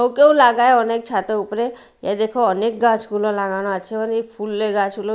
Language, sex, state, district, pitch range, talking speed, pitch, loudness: Bengali, female, Odisha, Malkangiri, 210-235 Hz, 165 wpm, 220 Hz, -18 LUFS